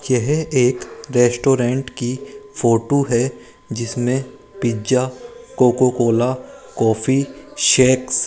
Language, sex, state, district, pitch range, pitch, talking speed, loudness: Hindi, male, Rajasthan, Jaipur, 120-135 Hz, 125 Hz, 95 wpm, -18 LUFS